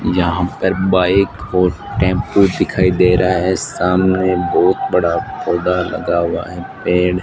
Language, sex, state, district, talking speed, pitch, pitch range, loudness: Hindi, male, Rajasthan, Bikaner, 150 wpm, 90 Hz, 90-95 Hz, -16 LUFS